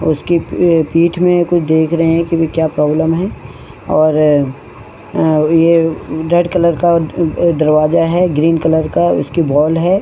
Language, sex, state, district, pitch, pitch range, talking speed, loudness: Hindi, female, Uttarakhand, Tehri Garhwal, 165 Hz, 155-170 Hz, 150 wpm, -13 LUFS